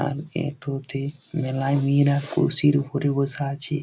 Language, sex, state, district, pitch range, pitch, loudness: Bengali, male, West Bengal, Jalpaiguri, 140-150 Hz, 140 Hz, -24 LUFS